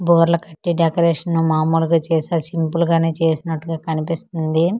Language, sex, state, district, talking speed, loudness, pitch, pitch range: Telugu, female, Andhra Pradesh, Manyam, 110 wpm, -18 LUFS, 165 Hz, 160-170 Hz